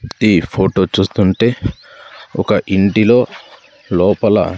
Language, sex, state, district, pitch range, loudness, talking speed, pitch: Telugu, male, Andhra Pradesh, Sri Satya Sai, 95-115 Hz, -14 LUFS, 80 wpm, 100 Hz